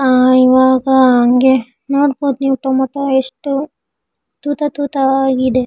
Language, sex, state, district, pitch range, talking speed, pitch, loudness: Kannada, female, Karnataka, Shimoga, 255-280 Hz, 105 wpm, 265 Hz, -13 LUFS